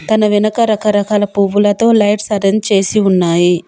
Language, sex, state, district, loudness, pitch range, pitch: Telugu, female, Telangana, Komaram Bheem, -12 LUFS, 200-215 Hz, 205 Hz